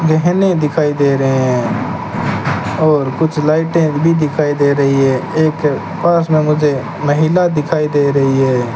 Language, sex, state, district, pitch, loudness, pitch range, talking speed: Hindi, male, Rajasthan, Bikaner, 150 Hz, -14 LUFS, 140-160 Hz, 150 wpm